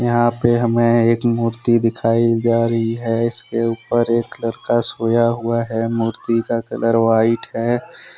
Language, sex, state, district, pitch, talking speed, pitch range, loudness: Hindi, male, Jharkhand, Deoghar, 115 Hz, 160 wpm, 115-120 Hz, -18 LUFS